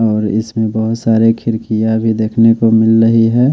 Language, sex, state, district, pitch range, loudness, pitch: Hindi, male, Chhattisgarh, Raipur, 110-115 Hz, -12 LUFS, 115 Hz